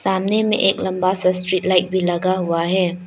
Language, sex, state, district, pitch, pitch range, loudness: Hindi, female, Arunachal Pradesh, Lower Dibang Valley, 185 Hz, 180-190 Hz, -18 LUFS